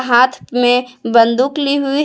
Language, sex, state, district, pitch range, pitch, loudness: Hindi, female, Jharkhand, Palamu, 245-280 Hz, 250 Hz, -14 LUFS